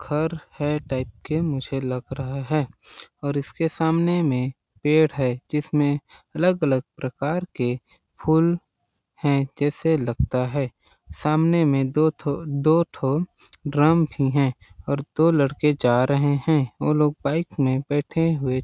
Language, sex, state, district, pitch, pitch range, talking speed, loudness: Hindi, male, Chhattisgarh, Balrampur, 145 Hz, 130-155 Hz, 145 wpm, -23 LUFS